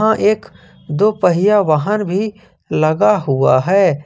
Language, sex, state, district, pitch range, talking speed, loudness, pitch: Hindi, male, Jharkhand, Ranchi, 155-210 Hz, 135 wpm, -15 LUFS, 195 Hz